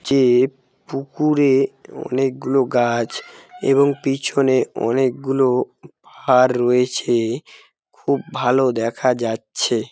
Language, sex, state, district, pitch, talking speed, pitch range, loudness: Bengali, male, West Bengal, Jalpaiguri, 130 Hz, 85 wpm, 125-135 Hz, -19 LUFS